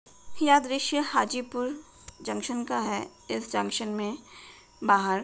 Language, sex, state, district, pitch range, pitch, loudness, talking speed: Hindi, female, Uttar Pradesh, Jalaun, 200-280 Hz, 245 Hz, -28 LUFS, 125 wpm